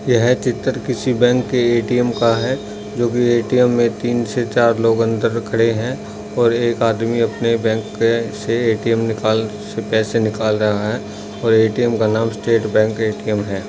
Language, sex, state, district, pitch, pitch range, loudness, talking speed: Hindi, male, Bihar, Jamui, 115 Hz, 110-120 Hz, -17 LUFS, 180 wpm